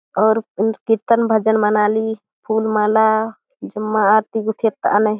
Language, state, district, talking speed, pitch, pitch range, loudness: Kurukh, Chhattisgarh, Jashpur, 125 wpm, 220 Hz, 215-220 Hz, -17 LUFS